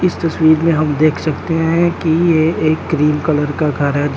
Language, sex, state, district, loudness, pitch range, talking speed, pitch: Hindi, male, Uttar Pradesh, Shamli, -15 LUFS, 150-165 Hz, 215 wpm, 160 Hz